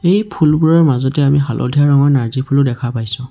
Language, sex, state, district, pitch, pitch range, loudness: Assamese, male, Assam, Sonitpur, 140 Hz, 130-155 Hz, -14 LUFS